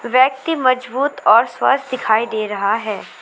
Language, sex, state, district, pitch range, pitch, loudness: Hindi, female, West Bengal, Alipurduar, 220-265 Hz, 250 Hz, -17 LUFS